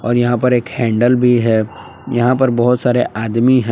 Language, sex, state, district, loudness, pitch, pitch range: Hindi, male, Jharkhand, Palamu, -14 LUFS, 120 Hz, 115-125 Hz